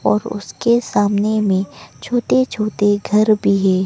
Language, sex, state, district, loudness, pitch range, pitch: Hindi, female, Arunachal Pradesh, Longding, -17 LUFS, 195-215 Hz, 205 Hz